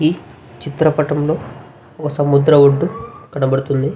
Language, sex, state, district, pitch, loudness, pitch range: Telugu, male, Andhra Pradesh, Visakhapatnam, 145 Hz, -15 LUFS, 135-155 Hz